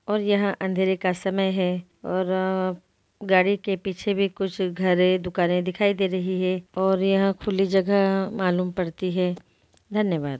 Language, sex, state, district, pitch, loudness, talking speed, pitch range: Hindi, female, Bihar, Gopalganj, 190 Hz, -24 LUFS, 155 wpm, 185-195 Hz